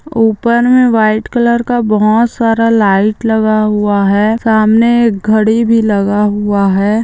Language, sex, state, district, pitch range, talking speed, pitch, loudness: Hindi, female, Andhra Pradesh, Chittoor, 210-230 Hz, 155 wpm, 220 Hz, -11 LUFS